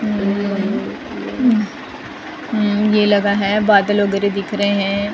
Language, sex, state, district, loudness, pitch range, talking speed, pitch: Hindi, female, Maharashtra, Gondia, -17 LUFS, 200-215 Hz, 140 wpm, 205 Hz